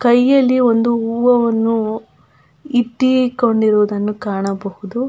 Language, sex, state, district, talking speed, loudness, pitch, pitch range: Kannada, female, Karnataka, Belgaum, 60 wpm, -16 LUFS, 230 Hz, 205-245 Hz